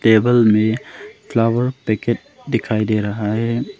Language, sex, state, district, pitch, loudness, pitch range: Hindi, male, Arunachal Pradesh, Longding, 115 Hz, -18 LUFS, 110-125 Hz